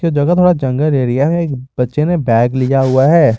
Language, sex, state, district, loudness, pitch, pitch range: Hindi, male, Jharkhand, Garhwa, -13 LUFS, 140 Hz, 130-165 Hz